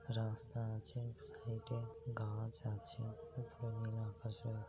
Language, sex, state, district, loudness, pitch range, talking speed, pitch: Bengali, male, West Bengal, North 24 Parganas, -45 LUFS, 110-115 Hz, 155 wpm, 115 Hz